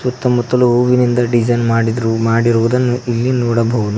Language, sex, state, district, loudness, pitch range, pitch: Kannada, male, Karnataka, Koppal, -14 LUFS, 115-125 Hz, 120 Hz